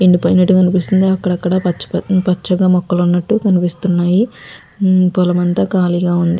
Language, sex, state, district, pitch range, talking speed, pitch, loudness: Telugu, female, Andhra Pradesh, Guntur, 175-185 Hz, 95 wpm, 180 Hz, -14 LUFS